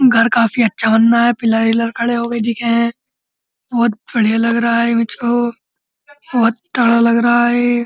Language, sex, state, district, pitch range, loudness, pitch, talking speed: Hindi, male, Uttar Pradesh, Muzaffarnagar, 230-240 Hz, -14 LUFS, 235 Hz, 185 wpm